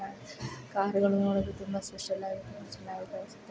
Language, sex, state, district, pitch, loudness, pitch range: Kannada, female, Karnataka, Mysore, 195 Hz, -33 LUFS, 195-200 Hz